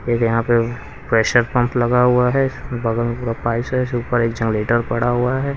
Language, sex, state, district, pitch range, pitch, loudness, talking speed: Hindi, male, Haryana, Rohtak, 115-125 Hz, 120 Hz, -18 LUFS, 205 wpm